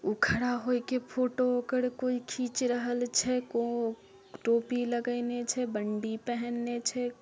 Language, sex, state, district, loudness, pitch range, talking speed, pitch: Maithili, female, Bihar, Samastipur, -31 LUFS, 235-250 Hz, 135 wpm, 245 Hz